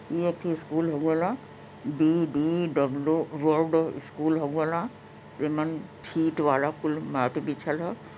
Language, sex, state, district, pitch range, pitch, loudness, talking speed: Bhojpuri, male, Uttar Pradesh, Varanasi, 150-165 Hz, 155 Hz, -27 LUFS, 130 wpm